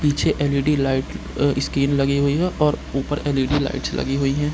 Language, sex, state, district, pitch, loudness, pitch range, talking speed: Hindi, male, Bihar, Gopalganj, 140 Hz, -21 LUFS, 135-145 Hz, 200 wpm